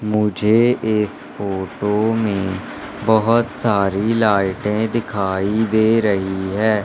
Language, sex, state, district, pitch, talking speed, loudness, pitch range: Hindi, male, Madhya Pradesh, Katni, 105 Hz, 95 wpm, -18 LUFS, 100-110 Hz